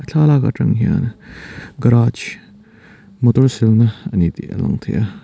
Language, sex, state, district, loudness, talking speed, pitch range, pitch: Mizo, male, Mizoram, Aizawl, -16 LUFS, 150 wpm, 115-135 Hz, 120 Hz